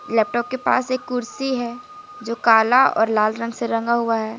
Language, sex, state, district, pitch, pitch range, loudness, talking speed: Hindi, female, Jharkhand, Deoghar, 235 Hz, 230-255 Hz, -20 LUFS, 205 wpm